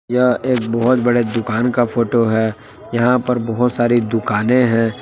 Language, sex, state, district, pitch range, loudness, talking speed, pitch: Hindi, male, Jharkhand, Palamu, 115-125 Hz, -16 LUFS, 165 wpm, 120 Hz